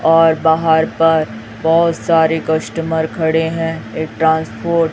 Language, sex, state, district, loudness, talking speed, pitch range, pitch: Hindi, female, Chhattisgarh, Raipur, -15 LUFS, 135 wpm, 160-165 Hz, 160 Hz